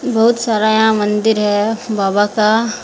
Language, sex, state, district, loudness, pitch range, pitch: Hindi, female, Jharkhand, Deoghar, -14 LUFS, 210-225 Hz, 220 Hz